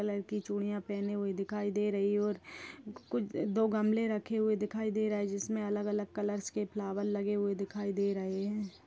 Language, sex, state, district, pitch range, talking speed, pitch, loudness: Kumaoni, female, Uttarakhand, Uttarkashi, 200-210 Hz, 205 wpm, 205 Hz, -34 LUFS